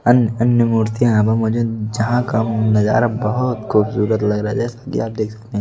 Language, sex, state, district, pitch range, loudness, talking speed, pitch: Hindi, male, Delhi, New Delhi, 110-120 Hz, -17 LUFS, 225 wpm, 110 Hz